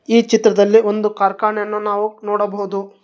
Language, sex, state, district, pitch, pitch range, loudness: Kannada, male, Karnataka, Bangalore, 210 Hz, 205-215 Hz, -16 LUFS